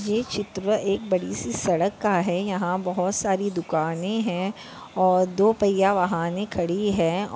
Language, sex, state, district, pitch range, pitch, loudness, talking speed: Hindi, female, Maharashtra, Chandrapur, 180-205 Hz, 190 Hz, -24 LUFS, 145 wpm